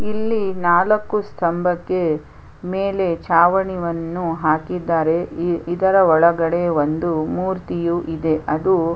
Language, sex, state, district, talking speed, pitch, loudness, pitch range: Kannada, female, Karnataka, Chamarajanagar, 85 wpm, 175 Hz, -19 LUFS, 165-185 Hz